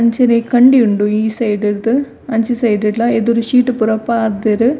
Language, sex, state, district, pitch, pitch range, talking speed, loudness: Tulu, female, Karnataka, Dakshina Kannada, 230 Hz, 220-240 Hz, 165 wpm, -14 LUFS